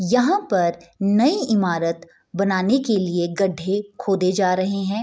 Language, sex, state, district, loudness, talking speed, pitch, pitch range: Hindi, female, Bihar, Madhepura, -21 LUFS, 155 wpm, 195 Hz, 180-210 Hz